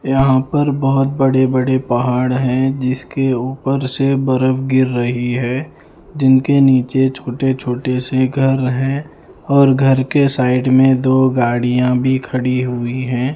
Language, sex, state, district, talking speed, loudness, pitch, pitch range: Hindi, male, Himachal Pradesh, Shimla, 145 wpm, -15 LUFS, 130 Hz, 125-135 Hz